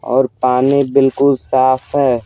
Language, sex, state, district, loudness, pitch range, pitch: Hindi, male, Bihar, Patna, -14 LUFS, 130-140 Hz, 130 Hz